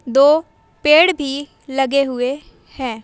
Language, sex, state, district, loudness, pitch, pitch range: Hindi, female, Madhya Pradesh, Umaria, -16 LUFS, 275 Hz, 265-300 Hz